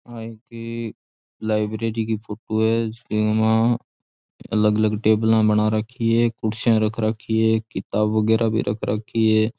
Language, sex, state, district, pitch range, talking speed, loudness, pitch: Rajasthani, male, Rajasthan, Churu, 110-115 Hz, 155 wpm, -21 LUFS, 110 Hz